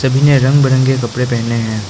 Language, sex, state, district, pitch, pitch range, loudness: Hindi, male, Arunachal Pradesh, Lower Dibang Valley, 130 Hz, 115-135 Hz, -13 LUFS